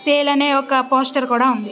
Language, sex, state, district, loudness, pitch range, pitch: Telugu, female, Andhra Pradesh, Visakhapatnam, -17 LUFS, 260-285 Hz, 265 Hz